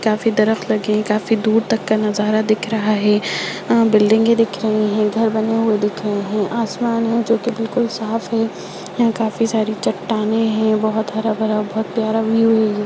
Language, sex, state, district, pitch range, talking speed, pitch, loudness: Hindi, female, Bihar, Jamui, 215-225 Hz, 190 wpm, 220 Hz, -18 LUFS